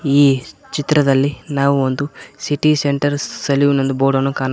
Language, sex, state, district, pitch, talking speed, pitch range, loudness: Kannada, male, Karnataka, Koppal, 140 Hz, 130 wpm, 135-145 Hz, -17 LUFS